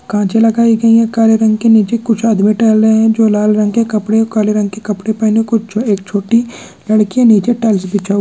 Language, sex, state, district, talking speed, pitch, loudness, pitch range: Hindi, male, Bihar, Araria, 250 wpm, 220 Hz, -12 LUFS, 210-225 Hz